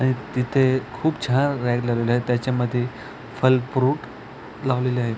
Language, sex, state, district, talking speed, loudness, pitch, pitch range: Marathi, male, Maharashtra, Aurangabad, 140 wpm, -22 LUFS, 125 Hz, 120-130 Hz